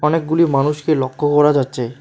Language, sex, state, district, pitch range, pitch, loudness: Bengali, male, West Bengal, Alipurduar, 135-150 Hz, 150 Hz, -16 LUFS